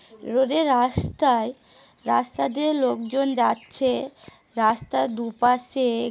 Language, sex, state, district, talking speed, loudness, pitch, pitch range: Bengali, female, West Bengal, Paschim Medinipur, 90 wpm, -23 LUFS, 245 Hz, 225-260 Hz